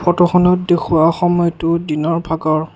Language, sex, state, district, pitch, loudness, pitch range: Assamese, male, Assam, Kamrup Metropolitan, 170 Hz, -15 LUFS, 160-175 Hz